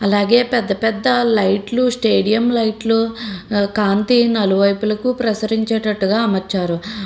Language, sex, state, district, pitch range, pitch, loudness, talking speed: Telugu, female, Andhra Pradesh, Srikakulam, 200-230 Hz, 215 Hz, -17 LUFS, 85 wpm